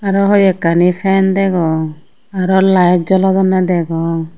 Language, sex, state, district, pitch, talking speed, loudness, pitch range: Chakma, female, Tripura, Unakoti, 185 Hz, 110 wpm, -13 LUFS, 165-190 Hz